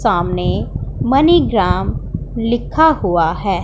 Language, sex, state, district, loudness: Hindi, female, Punjab, Pathankot, -16 LUFS